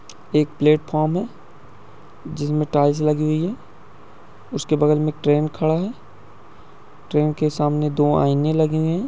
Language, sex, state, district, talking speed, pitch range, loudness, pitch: Hindi, male, Uttar Pradesh, Hamirpur, 150 wpm, 150-155 Hz, -20 LUFS, 150 Hz